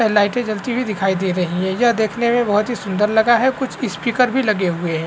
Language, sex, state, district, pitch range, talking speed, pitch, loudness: Hindi, male, Chhattisgarh, Balrampur, 190-240 Hz, 260 wpm, 220 Hz, -18 LUFS